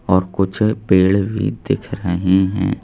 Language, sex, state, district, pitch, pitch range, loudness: Hindi, male, Madhya Pradesh, Bhopal, 95 Hz, 95-105 Hz, -17 LUFS